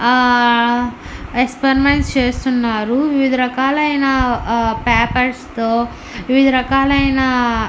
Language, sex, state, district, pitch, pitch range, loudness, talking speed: Telugu, female, Andhra Pradesh, Anantapur, 250 Hz, 235-270 Hz, -15 LUFS, 80 wpm